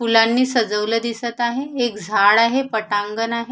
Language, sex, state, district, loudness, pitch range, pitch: Marathi, female, Maharashtra, Solapur, -19 LUFS, 220-240 Hz, 230 Hz